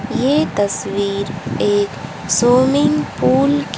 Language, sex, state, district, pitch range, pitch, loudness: Hindi, female, Haryana, Charkhi Dadri, 155-260 Hz, 200 Hz, -16 LUFS